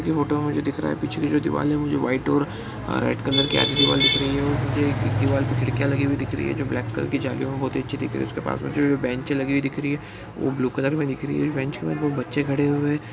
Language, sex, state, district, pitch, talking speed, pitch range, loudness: Hindi, male, Bihar, Bhagalpur, 140 Hz, 320 wpm, 130-145 Hz, -23 LUFS